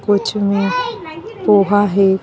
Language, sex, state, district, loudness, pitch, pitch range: Hindi, female, Bihar, Gaya, -15 LUFS, 205 Hz, 200-325 Hz